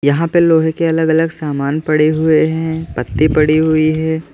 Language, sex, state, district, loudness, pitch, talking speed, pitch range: Hindi, male, Uttar Pradesh, Lalitpur, -14 LUFS, 155 Hz, 195 wpm, 155-160 Hz